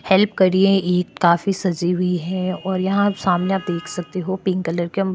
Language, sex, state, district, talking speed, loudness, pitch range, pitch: Hindi, female, Maharashtra, Chandrapur, 220 wpm, -20 LUFS, 180-195 Hz, 185 Hz